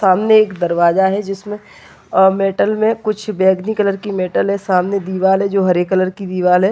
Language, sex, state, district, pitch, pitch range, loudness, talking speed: Hindi, male, West Bengal, Dakshin Dinajpur, 190 Hz, 185-205 Hz, -15 LUFS, 195 wpm